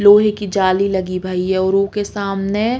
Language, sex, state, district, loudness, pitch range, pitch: Bundeli, female, Uttar Pradesh, Hamirpur, -17 LUFS, 190-205 Hz, 195 Hz